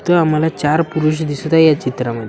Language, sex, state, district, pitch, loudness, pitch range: Marathi, male, Maharashtra, Washim, 155 Hz, -15 LUFS, 145-160 Hz